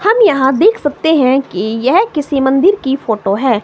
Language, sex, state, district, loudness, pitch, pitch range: Hindi, female, Himachal Pradesh, Shimla, -12 LUFS, 275 Hz, 255-325 Hz